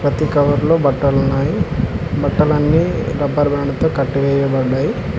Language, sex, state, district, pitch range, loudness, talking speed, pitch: Telugu, male, Telangana, Hyderabad, 140-150 Hz, -16 LUFS, 95 wpm, 145 Hz